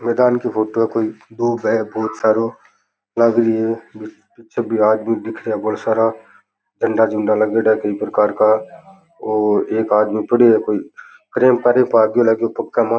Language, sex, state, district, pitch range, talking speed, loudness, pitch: Rajasthani, male, Rajasthan, Churu, 110-115 Hz, 180 wpm, -17 LUFS, 110 Hz